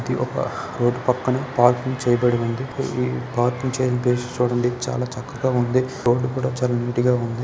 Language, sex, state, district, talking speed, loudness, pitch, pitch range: Telugu, male, Karnataka, Dharwad, 160 wpm, -22 LUFS, 125 Hz, 120-130 Hz